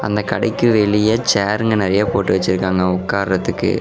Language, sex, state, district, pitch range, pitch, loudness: Tamil, male, Tamil Nadu, Namakkal, 95-105 Hz, 100 Hz, -17 LUFS